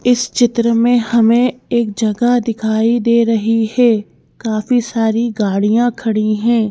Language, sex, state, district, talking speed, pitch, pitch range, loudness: Hindi, female, Madhya Pradesh, Bhopal, 135 wpm, 230 Hz, 220-240 Hz, -14 LUFS